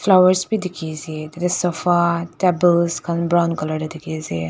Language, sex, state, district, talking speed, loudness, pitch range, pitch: Nagamese, female, Nagaland, Dimapur, 135 wpm, -19 LUFS, 160-180 Hz, 170 Hz